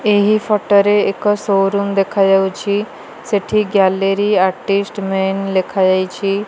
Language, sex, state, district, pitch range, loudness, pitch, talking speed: Odia, female, Odisha, Malkangiri, 195-205 Hz, -15 LUFS, 200 Hz, 100 wpm